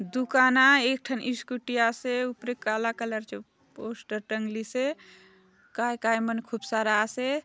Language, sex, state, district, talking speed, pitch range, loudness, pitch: Halbi, female, Chhattisgarh, Bastar, 155 wpm, 225-255 Hz, -26 LUFS, 235 Hz